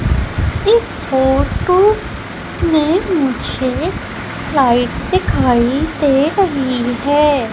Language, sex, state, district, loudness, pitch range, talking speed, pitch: Hindi, female, Madhya Pradesh, Umaria, -15 LUFS, 255-335 Hz, 70 wpm, 280 Hz